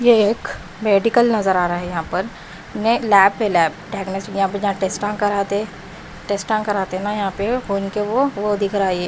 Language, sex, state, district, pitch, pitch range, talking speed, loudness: Hindi, female, Bihar, West Champaran, 200 Hz, 190-210 Hz, 185 wpm, -19 LUFS